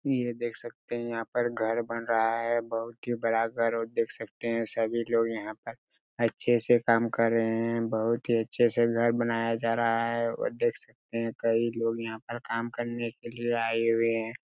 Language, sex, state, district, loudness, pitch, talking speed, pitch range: Hindi, male, Chhattisgarh, Raigarh, -29 LUFS, 115 Hz, 220 wpm, 115-120 Hz